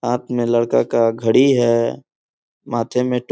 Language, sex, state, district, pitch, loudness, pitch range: Hindi, male, Bihar, Gopalganj, 120 Hz, -17 LUFS, 115-125 Hz